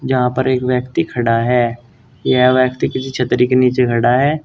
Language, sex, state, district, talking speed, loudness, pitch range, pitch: Hindi, male, Uttar Pradesh, Saharanpur, 190 wpm, -15 LUFS, 125-130 Hz, 125 Hz